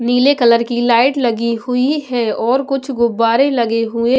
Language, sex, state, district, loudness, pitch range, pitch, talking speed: Hindi, female, Punjab, Pathankot, -15 LUFS, 235-265 Hz, 240 Hz, 170 wpm